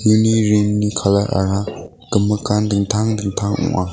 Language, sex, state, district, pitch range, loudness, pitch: Garo, male, Meghalaya, West Garo Hills, 100-110 Hz, -17 LUFS, 105 Hz